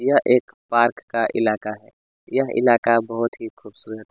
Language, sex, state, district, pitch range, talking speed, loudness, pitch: Hindi, male, Chhattisgarh, Kabirdham, 110-120 Hz, 175 wpm, -20 LUFS, 115 Hz